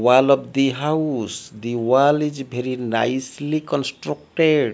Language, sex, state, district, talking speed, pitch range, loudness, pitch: English, male, Odisha, Malkangiri, 125 wpm, 125-145 Hz, -21 LUFS, 135 Hz